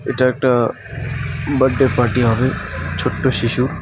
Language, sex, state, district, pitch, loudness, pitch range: Bengali, male, West Bengal, Alipurduar, 125 Hz, -18 LUFS, 115-130 Hz